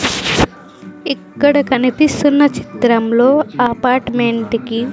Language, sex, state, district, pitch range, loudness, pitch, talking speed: Telugu, female, Andhra Pradesh, Sri Satya Sai, 235-285 Hz, -14 LUFS, 250 Hz, 60 wpm